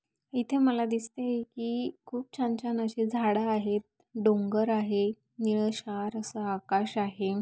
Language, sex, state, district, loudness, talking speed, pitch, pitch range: Marathi, female, Maharashtra, Aurangabad, -30 LUFS, 145 wpm, 220 Hz, 210-235 Hz